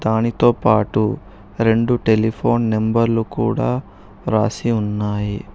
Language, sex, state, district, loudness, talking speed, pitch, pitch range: Telugu, male, Telangana, Hyderabad, -18 LUFS, 75 wpm, 110 Hz, 105-115 Hz